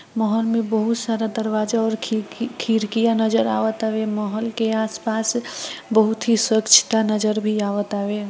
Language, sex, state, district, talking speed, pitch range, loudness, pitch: Hindi, female, Bihar, Gopalganj, 150 wpm, 215-225 Hz, -20 LUFS, 220 Hz